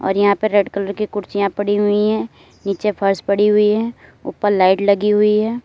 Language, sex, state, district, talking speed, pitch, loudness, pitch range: Hindi, female, Uttar Pradesh, Lalitpur, 210 wpm, 205 Hz, -17 LUFS, 200-210 Hz